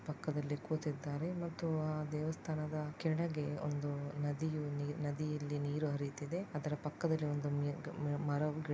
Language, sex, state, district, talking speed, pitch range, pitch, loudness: Kannada, female, Karnataka, Dakshina Kannada, 130 wpm, 145-155 Hz, 150 Hz, -39 LUFS